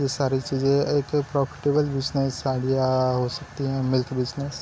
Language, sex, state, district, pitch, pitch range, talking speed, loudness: Hindi, male, Chhattisgarh, Bilaspur, 135 Hz, 130-140 Hz, 170 wpm, -24 LUFS